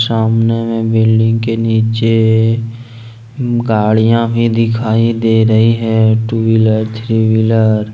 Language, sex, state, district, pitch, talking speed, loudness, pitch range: Hindi, male, Jharkhand, Ranchi, 115 Hz, 120 wpm, -12 LUFS, 110-115 Hz